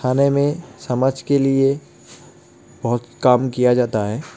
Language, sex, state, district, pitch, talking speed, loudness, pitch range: Hindi, male, West Bengal, Alipurduar, 130 Hz, 135 wpm, -18 LUFS, 120-140 Hz